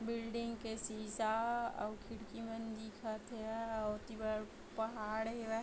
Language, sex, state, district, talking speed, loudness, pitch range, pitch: Chhattisgarhi, female, Chhattisgarh, Bilaspur, 140 wpm, -42 LUFS, 215-230 Hz, 225 Hz